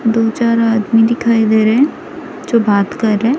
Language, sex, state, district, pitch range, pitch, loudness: Hindi, female, Chhattisgarh, Raipur, 220-250 Hz, 230 Hz, -13 LUFS